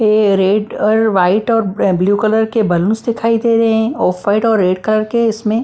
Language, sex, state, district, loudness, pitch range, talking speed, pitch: Hindi, female, Bihar, Patna, -14 LUFS, 200-225 Hz, 215 wpm, 215 Hz